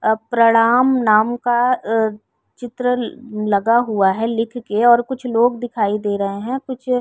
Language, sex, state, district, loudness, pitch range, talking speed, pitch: Hindi, female, Uttar Pradesh, Jyotiba Phule Nagar, -17 LUFS, 215-245 Hz, 170 wpm, 230 Hz